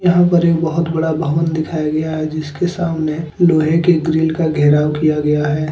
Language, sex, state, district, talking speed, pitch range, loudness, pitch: Hindi, male, Jharkhand, Deoghar, 200 wpm, 155-165 Hz, -16 LUFS, 160 Hz